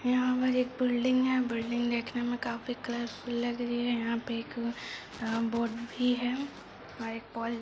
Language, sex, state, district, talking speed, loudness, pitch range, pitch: Hindi, female, Jharkhand, Sahebganj, 190 wpm, -32 LUFS, 235-250 Hz, 240 Hz